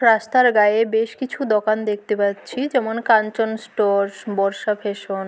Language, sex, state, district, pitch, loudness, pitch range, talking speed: Bengali, female, West Bengal, Jhargram, 215 Hz, -20 LUFS, 205-225 Hz, 145 wpm